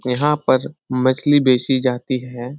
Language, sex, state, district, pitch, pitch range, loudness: Hindi, male, Bihar, Lakhisarai, 130 Hz, 125-145 Hz, -18 LUFS